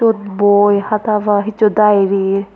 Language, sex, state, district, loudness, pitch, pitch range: Chakma, female, Tripura, Unakoti, -13 LUFS, 205 Hz, 200-215 Hz